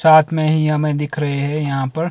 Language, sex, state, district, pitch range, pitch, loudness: Hindi, male, Himachal Pradesh, Shimla, 145-155 Hz, 150 Hz, -17 LUFS